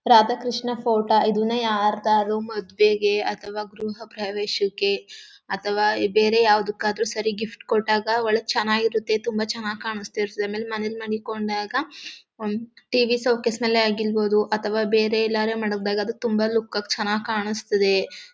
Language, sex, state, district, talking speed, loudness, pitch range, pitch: Kannada, female, Karnataka, Mysore, 130 wpm, -23 LUFS, 210-230 Hz, 220 Hz